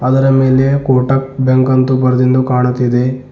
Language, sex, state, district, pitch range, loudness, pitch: Kannada, male, Karnataka, Bidar, 125-135 Hz, -12 LUFS, 130 Hz